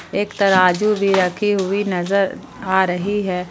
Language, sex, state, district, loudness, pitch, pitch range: Hindi, female, Jharkhand, Palamu, -18 LUFS, 195 Hz, 185-205 Hz